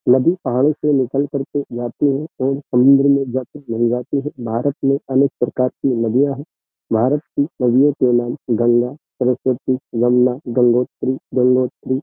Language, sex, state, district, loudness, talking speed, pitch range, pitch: Hindi, male, Uttar Pradesh, Jyotiba Phule Nagar, -18 LUFS, 165 wpm, 120-140 Hz, 130 Hz